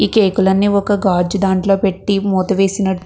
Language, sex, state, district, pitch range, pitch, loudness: Telugu, female, Andhra Pradesh, Krishna, 190-200 Hz, 195 Hz, -15 LUFS